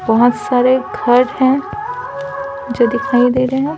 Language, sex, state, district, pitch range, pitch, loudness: Hindi, female, Bihar, Patna, 240-265 Hz, 250 Hz, -15 LUFS